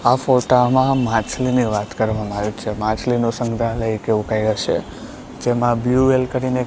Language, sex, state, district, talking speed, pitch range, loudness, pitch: Gujarati, male, Gujarat, Gandhinagar, 145 wpm, 110-125 Hz, -19 LUFS, 120 Hz